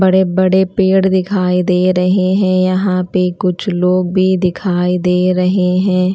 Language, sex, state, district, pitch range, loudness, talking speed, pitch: Hindi, female, Chandigarh, Chandigarh, 180-190 Hz, -13 LUFS, 155 wpm, 185 Hz